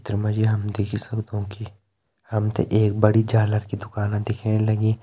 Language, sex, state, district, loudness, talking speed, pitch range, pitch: Hindi, male, Uttarakhand, Tehri Garhwal, -23 LUFS, 190 wpm, 105-110 Hz, 105 Hz